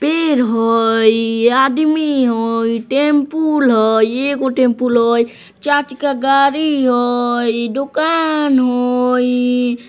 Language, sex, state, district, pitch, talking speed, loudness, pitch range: Bajjika, female, Bihar, Vaishali, 250 Hz, 90 wpm, -15 LUFS, 235-285 Hz